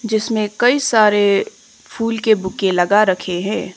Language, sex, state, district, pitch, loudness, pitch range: Hindi, female, Arunachal Pradesh, Papum Pare, 210 Hz, -16 LUFS, 190-225 Hz